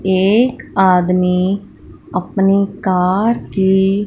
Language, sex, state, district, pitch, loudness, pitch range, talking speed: Hindi, female, Punjab, Fazilka, 190 Hz, -15 LUFS, 185-200 Hz, 75 wpm